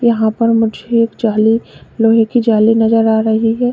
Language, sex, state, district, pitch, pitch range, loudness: Hindi, female, Uttar Pradesh, Lalitpur, 225 Hz, 220-230 Hz, -13 LUFS